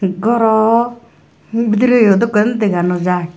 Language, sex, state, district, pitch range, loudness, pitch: Chakma, female, Tripura, Dhalai, 190-235 Hz, -14 LUFS, 220 Hz